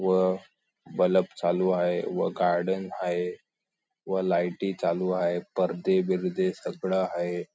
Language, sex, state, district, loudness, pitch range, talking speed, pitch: Marathi, male, Maharashtra, Sindhudurg, -27 LUFS, 90-95 Hz, 120 wpm, 95 Hz